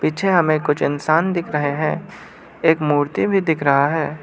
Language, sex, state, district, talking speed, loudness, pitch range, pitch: Hindi, male, Arunachal Pradesh, Lower Dibang Valley, 185 wpm, -18 LUFS, 145-160 Hz, 155 Hz